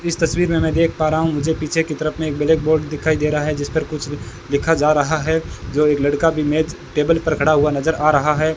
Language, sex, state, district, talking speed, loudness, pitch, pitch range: Hindi, male, Rajasthan, Bikaner, 275 wpm, -18 LUFS, 155 Hz, 150-160 Hz